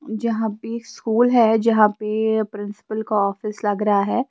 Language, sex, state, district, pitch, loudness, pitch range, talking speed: Hindi, female, Himachal Pradesh, Shimla, 220 Hz, -20 LUFS, 210-230 Hz, 165 wpm